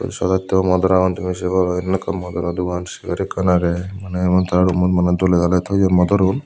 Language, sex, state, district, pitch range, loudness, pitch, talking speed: Chakma, male, Tripura, Unakoti, 90-95 Hz, -18 LUFS, 90 Hz, 205 wpm